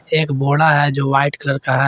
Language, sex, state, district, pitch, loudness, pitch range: Hindi, male, Jharkhand, Garhwa, 140 Hz, -16 LUFS, 135-145 Hz